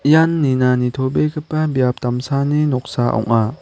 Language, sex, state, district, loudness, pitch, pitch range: Garo, male, Meghalaya, West Garo Hills, -17 LUFS, 130 Hz, 125-150 Hz